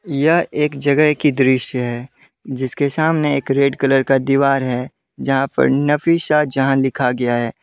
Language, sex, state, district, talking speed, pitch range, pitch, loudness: Hindi, male, Jharkhand, Deoghar, 155 wpm, 130-150 Hz, 135 Hz, -17 LUFS